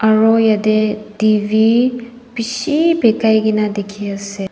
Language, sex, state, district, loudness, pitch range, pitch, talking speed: Nagamese, female, Nagaland, Dimapur, -15 LUFS, 210-235 Hz, 220 Hz, 105 wpm